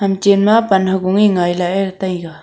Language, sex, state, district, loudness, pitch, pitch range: Wancho, female, Arunachal Pradesh, Longding, -14 LUFS, 190 Hz, 180-200 Hz